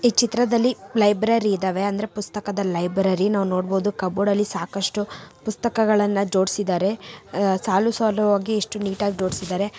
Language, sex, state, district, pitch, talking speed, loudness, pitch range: Kannada, male, Karnataka, Mysore, 200 Hz, 115 wpm, -22 LUFS, 190-215 Hz